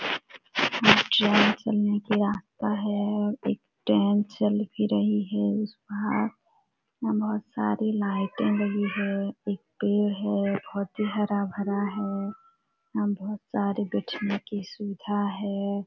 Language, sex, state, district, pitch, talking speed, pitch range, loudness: Hindi, female, Jharkhand, Sahebganj, 205 Hz, 130 wpm, 200-210 Hz, -27 LUFS